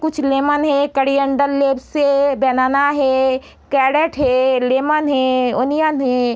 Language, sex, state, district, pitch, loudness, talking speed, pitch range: Hindi, female, Bihar, Araria, 275 Hz, -16 LUFS, 130 wpm, 260-285 Hz